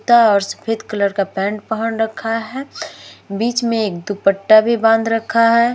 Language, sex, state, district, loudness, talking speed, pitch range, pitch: Hindi, female, Uttar Pradesh, Muzaffarnagar, -17 LUFS, 155 wpm, 205-230 Hz, 225 Hz